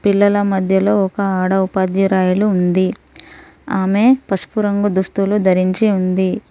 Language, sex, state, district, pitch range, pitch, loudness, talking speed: Telugu, female, Telangana, Mahabubabad, 185-205 Hz, 195 Hz, -16 LUFS, 110 wpm